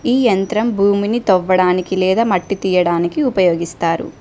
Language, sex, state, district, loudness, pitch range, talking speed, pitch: Telugu, female, Telangana, Mahabubabad, -16 LUFS, 180-215 Hz, 115 wpm, 190 Hz